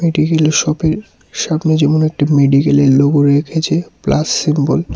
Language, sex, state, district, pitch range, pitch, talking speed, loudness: Bengali, male, Tripura, West Tripura, 145-160 Hz, 155 Hz, 145 wpm, -13 LUFS